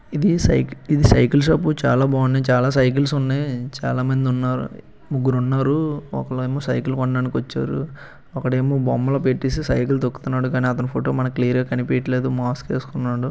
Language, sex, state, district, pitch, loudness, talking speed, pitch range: Telugu, male, Andhra Pradesh, Krishna, 130 Hz, -20 LUFS, 160 wpm, 125-135 Hz